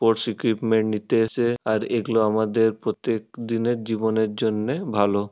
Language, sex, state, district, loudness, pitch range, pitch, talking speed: Bengali, male, West Bengal, Purulia, -23 LUFS, 110-115 Hz, 110 Hz, 135 wpm